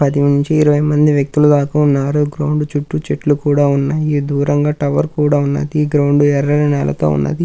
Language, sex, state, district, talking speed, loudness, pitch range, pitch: Telugu, male, Andhra Pradesh, Krishna, 170 wpm, -14 LUFS, 140-150 Hz, 145 Hz